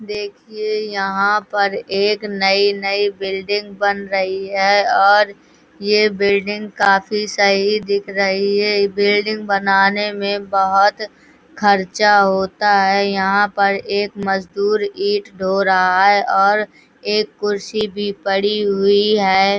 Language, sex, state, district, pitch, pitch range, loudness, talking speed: Hindi, female, Uttar Pradesh, Hamirpur, 200 Hz, 195-210 Hz, -16 LUFS, 120 wpm